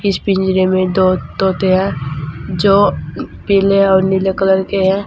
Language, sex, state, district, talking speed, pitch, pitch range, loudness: Hindi, female, Uttar Pradesh, Saharanpur, 155 wpm, 190 Hz, 185-195 Hz, -14 LUFS